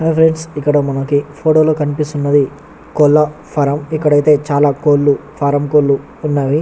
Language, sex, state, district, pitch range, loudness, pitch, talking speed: Telugu, male, Telangana, Nalgonda, 145-150 Hz, -14 LUFS, 145 Hz, 125 wpm